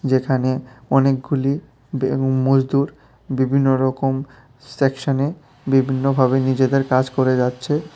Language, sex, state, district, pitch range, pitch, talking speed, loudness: Bengali, male, Tripura, West Tripura, 130-135 Hz, 135 Hz, 85 wpm, -19 LUFS